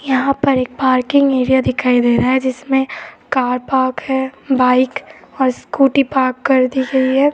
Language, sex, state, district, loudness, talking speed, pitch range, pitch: Hindi, female, Uttar Pradesh, Muzaffarnagar, -15 LUFS, 170 wpm, 255-270 Hz, 265 Hz